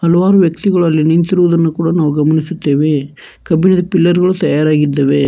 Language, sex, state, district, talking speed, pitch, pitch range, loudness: Kannada, male, Karnataka, Bangalore, 115 wpm, 165 Hz, 150-175 Hz, -12 LUFS